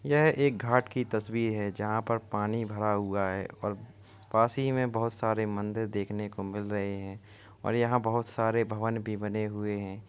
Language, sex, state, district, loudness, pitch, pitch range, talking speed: Hindi, male, Uttar Pradesh, Varanasi, -30 LUFS, 110 Hz, 105-115 Hz, 190 wpm